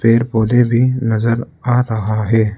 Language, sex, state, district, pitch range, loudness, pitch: Hindi, male, Arunachal Pradesh, Lower Dibang Valley, 110-120 Hz, -15 LUFS, 115 Hz